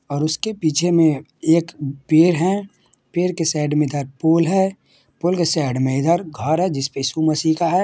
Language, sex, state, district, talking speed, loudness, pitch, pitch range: Hindi, male, Bihar, Madhepura, 205 wpm, -19 LUFS, 160 Hz, 150-175 Hz